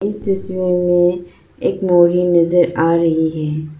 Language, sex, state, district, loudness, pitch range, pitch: Hindi, female, Arunachal Pradesh, Lower Dibang Valley, -16 LUFS, 165-180 Hz, 175 Hz